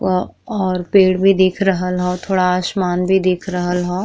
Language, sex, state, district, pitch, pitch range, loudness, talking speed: Bhojpuri, female, Bihar, East Champaran, 185 Hz, 180-190 Hz, -17 LUFS, 195 wpm